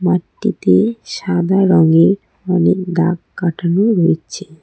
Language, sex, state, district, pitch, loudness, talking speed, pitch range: Bengali, female, West Bengal, Cooch Behar, 180 Hz, -15 LUFS, 90 wpm, 170-190 Hz